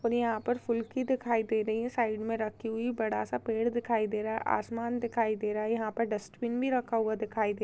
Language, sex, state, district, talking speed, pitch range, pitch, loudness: Hindi, female, Chhattisgarh, Rajnandgaon, 250 wpm, 215-235 Hz, 225 Hz, -32 LUFS